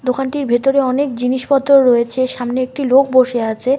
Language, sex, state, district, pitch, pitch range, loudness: Bengali, female, West Bengal, North 24 Parganas, 255 Hz, 250-270 Hz, -15 LUFS